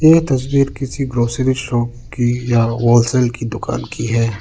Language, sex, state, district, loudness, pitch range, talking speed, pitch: Hindi, male, Arunachal Pradesh, Lower Dibang Valley, -17 LUFS, 115-130 Hz, 165 wpm, 120 Hz